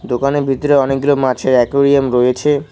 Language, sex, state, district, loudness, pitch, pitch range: Bengali, male, West Bengal, Cooch Behar, -14 LUFS, 140 Hz, 130-140 Hz